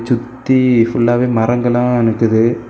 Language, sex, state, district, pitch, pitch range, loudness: Tamil, male, Tamil Nadu, Kanyakumari, 120 Hz, 115-125 Hz, -14 LUFS